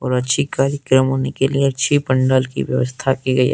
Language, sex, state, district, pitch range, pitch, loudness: Hindi, male, Jharkhand, Deoghar, 130-135 Hz, 130 Hz, -17 LUFS